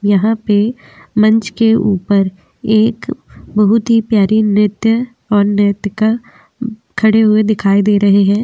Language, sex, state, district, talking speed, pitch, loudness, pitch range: Hindi, female, Uttar Pradesh, Hamirpur, 130 wpm, 215 Hz, -13 LUFS, 205-225 Hz